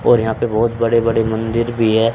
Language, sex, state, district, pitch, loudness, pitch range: Hindi, male, Haryana, Charkhi Dadri, 115 Hz, -16 LUFS, 110-115 Hz